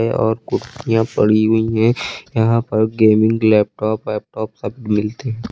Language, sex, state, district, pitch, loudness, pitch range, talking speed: Hindi, male, Uttar Pradesh, Lucknow, 110 Hz, -17 LUFS, 110-115 Hz, 150 wpm